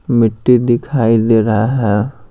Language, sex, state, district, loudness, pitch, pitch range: Hindi, male, Bihar, Patna, -13 LUFS, 115 Hz, 110-125 Hz